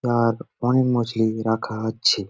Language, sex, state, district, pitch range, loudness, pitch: Bengali, male, West Bengal, Jalpaiguri, 110-120 Hz, -22 LUFS, 115 Hz